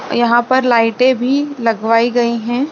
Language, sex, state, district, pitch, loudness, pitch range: Hindi, female, Bihar, Saran, 240 Hz, -14 LUFS, 235-260 Hz